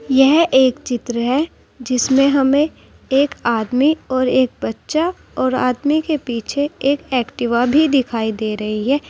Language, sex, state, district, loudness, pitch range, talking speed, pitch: Hindi, female, Uttar Pradesh, Saharanpur, -17 LUFS, 240-285 Hz, 145 wpm, 260 Hz